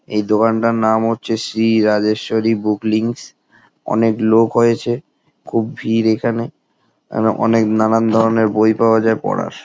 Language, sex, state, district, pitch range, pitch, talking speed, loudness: Bengali, male, West Bengal, Jalpaiguri, 110-115 Hz, 110 Hz, 135 wpm, -16 LUFS